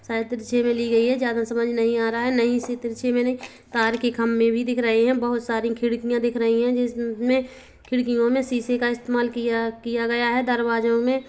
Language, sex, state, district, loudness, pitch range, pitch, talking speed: Hindi, female, Chhattisgarh, Kabirdham, -22 LUFS, 230-245 Hz, 240 Hz, 235 wpm